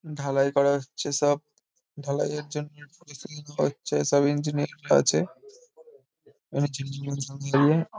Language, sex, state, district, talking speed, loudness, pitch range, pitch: Bengali, male, West Bengal, Kolkata, 75 wpm, -26 LUFS, 140-160 Hz, 145 Hz